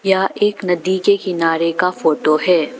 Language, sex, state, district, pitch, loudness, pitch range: Hindi, female, Arunachal Pradesh, Papum Pare, 180 Hz, -16 LUFS, 165-190 Hz